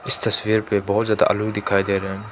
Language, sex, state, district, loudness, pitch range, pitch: Hindi, male, Manipur, Imphal West, -20 LUFS, 100-110 Hz, 105 Hz